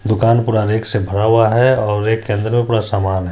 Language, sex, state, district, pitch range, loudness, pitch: Hindi, male, Bihar, Supaul, 105-115 Hz, -15 LUFS, 110 Hz